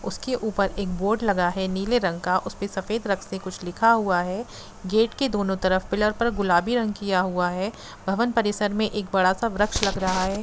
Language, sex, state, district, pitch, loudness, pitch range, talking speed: Hindi, female, Jharkhand, Sahebganj, 200 Hz, -24 LUFS, 185-220 Hz, 220 wpm